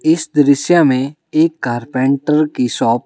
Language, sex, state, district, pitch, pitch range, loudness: Hindi, male, Himachal Pradesh, Shimla, 140 Hz, 130-155 Hz, -15 LUFS